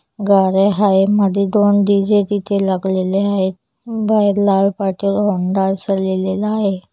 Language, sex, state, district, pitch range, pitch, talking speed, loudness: Marathi, female, Maharashtra, Chandrapur, 190-205 Hz, 200 Hz, 130 wpm, -16 LUFS